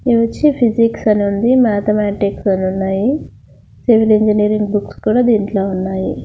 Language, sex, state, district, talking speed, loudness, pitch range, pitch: Telugu, female, Andhra Pradesh, Annamaya, 115 wpm, -15 LUFS, 200-230 Hz, 210 Hz